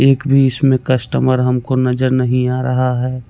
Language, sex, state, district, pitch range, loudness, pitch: Hindi, male, Chandigarh, Chandigarh, 125-130 Hz, -15 LUFS, 130 Hz